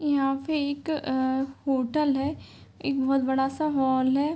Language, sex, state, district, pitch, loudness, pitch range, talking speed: Hindi, female, Bihar, Sitamarhi, 275 Hz, -26 LUFS, 265-290 Hz, 140 wpm